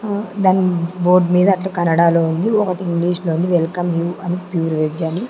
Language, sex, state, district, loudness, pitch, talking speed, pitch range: Telugu, female, Andhra Pradesh, Sri Satya Sai, -17 LUFS, 175 Hz, 180 wpm, 170-185 Hz